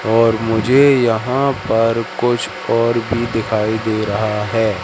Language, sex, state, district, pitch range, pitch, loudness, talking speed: Hindi, male, Madhya Pradesh, Katni, 110-120 Hz, 115 Hz, -16 LUFS, 135 wpm